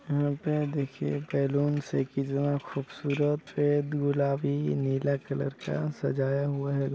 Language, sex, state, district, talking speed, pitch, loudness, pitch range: Hindi, male, Chhattisgarh, Balrampur, 120 wpm, 140 Hz, -29 LUFS, 135-145 Hz